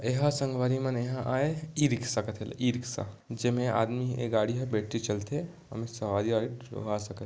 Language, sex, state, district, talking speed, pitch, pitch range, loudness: Chhattisgarhi, male, Chhattisgarh, Korba, 215 wpm, 120 Hz, 110-130 Hz, -31 LUFS